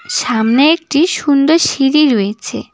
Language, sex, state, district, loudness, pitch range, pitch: Bengali, female, West Bengal, Cooch Behar, -12 LUFS, 245-310 Hz, 285 Hz